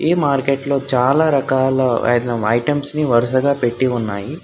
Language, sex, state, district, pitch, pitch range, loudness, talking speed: Telugu, male, Telangana, Hyderabad, 130 Hz, 120-140 Hz, -17 LUFS, 135 wpm